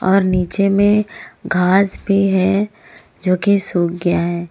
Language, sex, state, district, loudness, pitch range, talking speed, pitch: Hindi, female, Jharkhand, Ranchi, -16 LUFS, 180-200 Hz, 145 wpm, 190 Hz